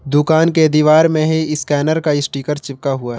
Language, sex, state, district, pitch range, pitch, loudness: Hindi, male, Jharkhand, Garhwa, 140-160 Hz, 150 Hz, -15 LUFS